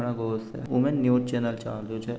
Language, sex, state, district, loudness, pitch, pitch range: Marwari, male, Rajasthan, Nagaur, -27 LUFS, 120 Hz, 115-125 Hz